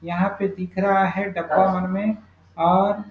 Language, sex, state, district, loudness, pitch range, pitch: Hindi, male, Chhattisgarh, Bastar, -21 LUFS, 185-200 Hz, 195 Hz